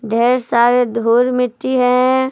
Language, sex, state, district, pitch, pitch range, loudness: Hindi, female, Jharkhand, Palamu, 250 Hz, 235-255 Hz, -14 LUFS